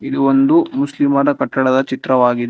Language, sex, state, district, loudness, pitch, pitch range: Kannada, male, Karnataka, Bangalore, -15 LUFS, 135 Hz, 130-145 Hz